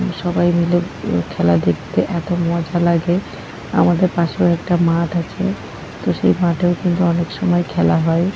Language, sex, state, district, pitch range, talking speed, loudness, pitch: Bengali, female, West Bengal, North 24 Parganas, 170-175 Hz, 150 wpm, -17 LUFS, 175 Hz